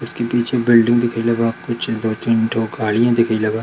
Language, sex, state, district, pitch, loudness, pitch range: Hindi, male, Bihar, Darbhanga, 115 Hz, -17 LUFS, 110-120 Hz